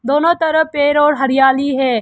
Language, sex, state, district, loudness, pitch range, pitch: Hindi, female, Arunachal Pradesh, Lower Dibang Valley, -14 LUFS, 270-300 Hz, 285 Hz